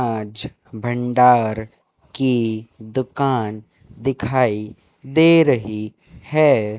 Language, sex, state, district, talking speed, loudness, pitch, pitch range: Hindi, male, Madhya Pradesh, Katni, 70 wpm, -18 LUFS, 120 Hz, 110-130 Hz